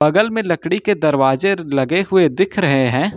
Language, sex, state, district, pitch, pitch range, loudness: Hindi, male, Uttar Pradesh, Lucknow, 175 Hz, 140-195 Hz, -16 LUFS